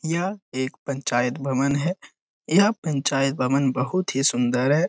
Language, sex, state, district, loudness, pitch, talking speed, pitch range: Hindi, male, Bihar, Jamui, -23 LUFS, 140 Hz, 145 wpm, 130-175 Hz